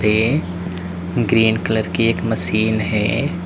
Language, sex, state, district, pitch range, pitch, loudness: Hindi, male, Uttar Pradesh, Lalitpur, 90-110 Hz, 105 Hz, -18 LUFS